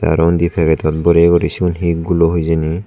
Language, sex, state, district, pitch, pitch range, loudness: Chakma, male, Tripura, Dhalai, 85 Hz, 80-85 Hz, -14 LUFS